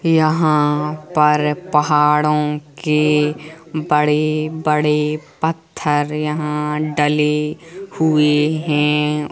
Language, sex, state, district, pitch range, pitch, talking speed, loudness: Hindi, female, Uttar Pradesh, Hamirpur, 150-155 Hz, 150 Hz, 70 wpm, -17 LUFS